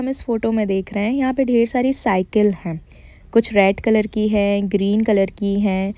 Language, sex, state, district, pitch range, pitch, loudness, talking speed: Hindi, female, Jharkhand, Jamtara, 200-230 Hz, 210 Hz, -18 LUFS, 230 wpm